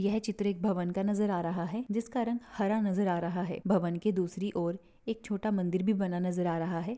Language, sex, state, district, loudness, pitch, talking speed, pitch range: Hindi, female, Maharashtra, Pune, -32 LUFS, 195 Hz, 250 wpm, 175-215 Hz